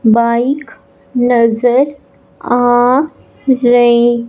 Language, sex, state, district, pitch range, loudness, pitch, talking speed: Hindi, female, Punjab, Fazilka, 240-260 Hz, -12 LUFS, 245 Hz, 55 wpm